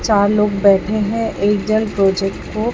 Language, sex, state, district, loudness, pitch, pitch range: Hindi, male, Chhattisgarh, Raipur, -16 LUFS, 210 Hz, 200-215 Hz